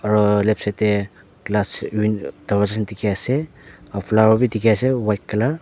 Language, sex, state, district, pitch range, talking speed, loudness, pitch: Nagamese, male, Nagaland, Dimapur, 105-110 Hz, 170 wpm, -19 LUFS, 105 Hz